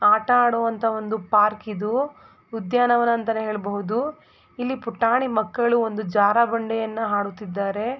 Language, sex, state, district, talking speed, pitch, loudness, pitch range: Kannada, female, Karnataka, Mysore, 105 wpm, 225 Hz, -22 LUFS, 215-245 Hz